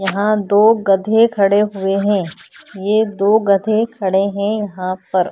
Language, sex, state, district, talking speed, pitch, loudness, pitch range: Hindi, female, Maharashtra, Chandrapur, 160 wpm, 200 Hz, -16 LUFS, 195-215 Hz